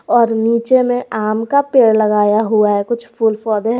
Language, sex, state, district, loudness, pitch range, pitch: Hindi, female, Jharkhand, Garhwa, -14 LUFS, 215-235 Hz, 225 Hz